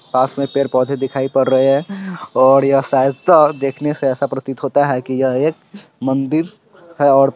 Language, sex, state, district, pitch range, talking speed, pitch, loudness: Hindi, male, Bihar, Sitamarhi, 135-150 Hz, 185 wpm, 135 Hz, -16 LUFS